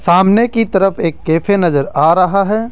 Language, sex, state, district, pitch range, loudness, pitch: Hindi, male, Rajasthan, Jaipur, 175-215 Hz, -13 LUFS, 195 Hz